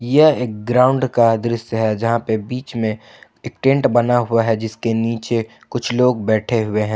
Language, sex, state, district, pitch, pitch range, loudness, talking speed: Hindi, male, Jharkhand, Ranchi, 115 Hz, 110-125 Hz, -18 LUFS, 190 wpm